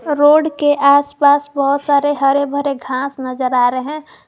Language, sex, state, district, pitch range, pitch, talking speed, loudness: Hindi, female, Jharkhand, Garhwa, 275-290 Hz, 285 Hz, 170 wpm, -15 LUFS